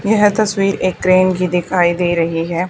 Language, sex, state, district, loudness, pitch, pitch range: Hindi, female, Haryana, Charkhi Dadri, -15 LUFS, 185 Hz, 175-195 Hz